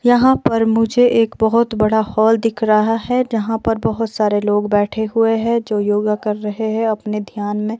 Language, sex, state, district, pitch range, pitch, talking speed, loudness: Hindi, female, Himachal Pradesh, Shimla, 210-225 Hz, 220 Hz, 200 wpm, -17 LUFS